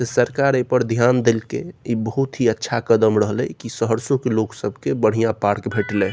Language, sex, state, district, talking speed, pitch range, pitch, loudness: Maithili, male, Bihar, Saharsa, 195 wpm, 110-125 Hz, 115 Hz, -20 LUFS